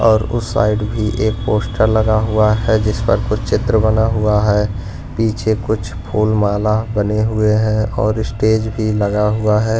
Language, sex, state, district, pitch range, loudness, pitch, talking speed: Hindi, male, Punjab, Pathankot, 105-110 Hz, -16 LUFS, 110 Hz, 175 wpm